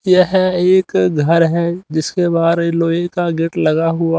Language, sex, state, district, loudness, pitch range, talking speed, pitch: Hindi, male, Haryana, Jhajjar, -15 LUFS, 165-180 Hz, 160 wpm, 170 Hz